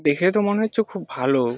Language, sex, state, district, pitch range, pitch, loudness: Bengali, male, West Bengal, Jalpaiguri, 135-210 Hz, 190 Hz, -22 LUFS